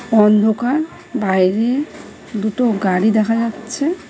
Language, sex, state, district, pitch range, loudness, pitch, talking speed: Bengali, female, West Bengal, Cooch Behar, 215-250 Hz, -17 LUFS, 225 Hz, 90 wpm